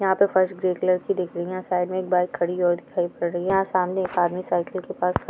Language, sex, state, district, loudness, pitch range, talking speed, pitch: Hindi, female, Andhra Pradesh, Chittoor, -24 LUFS, 175-185 Hz, 205 wpm, 180 Hz